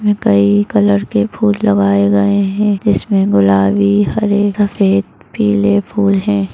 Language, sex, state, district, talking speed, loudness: Hindi, female, Chhattisgarh, Bastar, 135 wpm, -13 LUFS